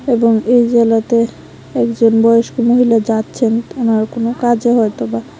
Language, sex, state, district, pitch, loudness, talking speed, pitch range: Bengali, female, Tripura, West Tripura, 230 Hz, -14 LUFS, 135 wpm, 225-240 Hz